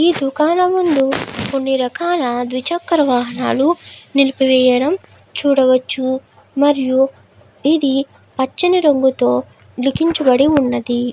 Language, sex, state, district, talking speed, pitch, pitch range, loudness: Telugu, female, Andhra Pradesh, Guntur, 80 wpm, 270 Hz, 255-305 Hz, -16 LUFS